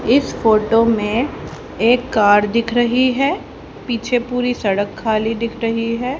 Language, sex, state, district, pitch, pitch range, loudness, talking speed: Hindi, female, Haryana, Rohtak, 230 Hz, 220-245 Hz, -17 LUFS, 145 wpm